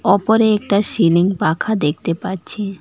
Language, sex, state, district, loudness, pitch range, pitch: Bengali, female, West Bengal, Alipurduar, -16 LUFS, 170-210 Hz, 195 Hz